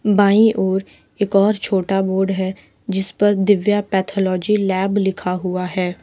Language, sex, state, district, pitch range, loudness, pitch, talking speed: Hindi, female, Uttar Pradesh, Lalitpur, 190-205 Hz, -18 LUFS, 195 Hz, 150 wpm